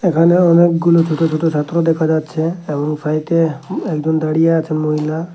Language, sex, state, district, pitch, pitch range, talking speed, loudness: Bengali, male, Tripura, Unakoti, 160 Hz, 155-170 Hz, 155 wpm, -15 LUFS